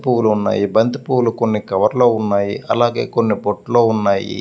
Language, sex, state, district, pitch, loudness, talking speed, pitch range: Telugu, male, Andhra Pradesh, Visakhapatnam, 110 Hz, -16 LUFS, 165 wpm, 105-120 Hz